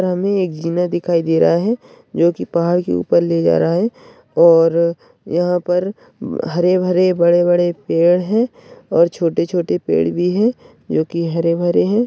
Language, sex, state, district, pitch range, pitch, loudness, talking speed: Hindi, male, Maharashtra, Dhule, 165-185 Hz, 175 Hz, -16 LUFS, 185 wpm